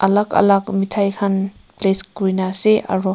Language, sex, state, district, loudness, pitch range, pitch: Nagamese, female, Nagaland, Kohima, -17 LUFS, 190-200 Hz, 195 Hz